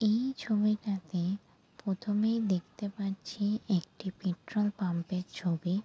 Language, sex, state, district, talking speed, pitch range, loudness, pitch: Bengali, female, West Bengal, Dakshin Dinajpur, 100 wpm, 185-210 Hz, -33 LUFS, 200 Hz